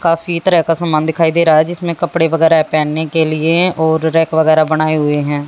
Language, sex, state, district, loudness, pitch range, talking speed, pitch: Hindi, female, Haryana, Jhajjar, -13 LUFS, 155-165 Hz, 220 wpm, 160 Hz